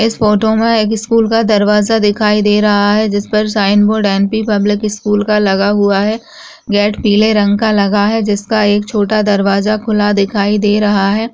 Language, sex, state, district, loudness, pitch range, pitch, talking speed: Hindi, female, Rajasthan, Churu, -12 LUFS, 205-220 Hz, 210 Hz, 195 wpm